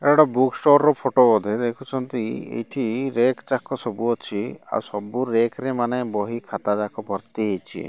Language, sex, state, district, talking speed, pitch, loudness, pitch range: Odia, male, Odisha, Malkangiri, 175 wpm, 120 Hz, -22 LUFS, 110-130 Hz